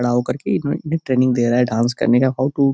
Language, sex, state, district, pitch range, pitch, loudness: Hindi, male, Uttar Pradesh, Gorakhpur, 120-135 Hz, 125 Hz, -18 LUFS